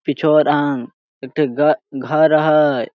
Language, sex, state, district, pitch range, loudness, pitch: Sadri, male, Chhattisgarh, Jashpur, 145-155 Hz, -16 LUFS, 150 Hz